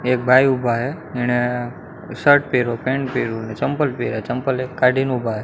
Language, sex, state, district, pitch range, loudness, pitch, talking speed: Gujarati, male, Gujarat, Gandhinagar, 120-130 Hz, -19 LUFS, 125 Hz, 185 wpm